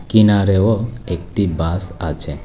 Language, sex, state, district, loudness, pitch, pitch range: Bengali, male, Tripura, West Tripura, -18 LUFS, 90 Hz, 85-105 Hz